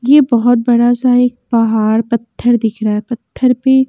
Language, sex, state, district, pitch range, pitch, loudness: Hindi, female, Haryana, Jhajjar, 230-250 Hz, 240 Hz, -13 LUFS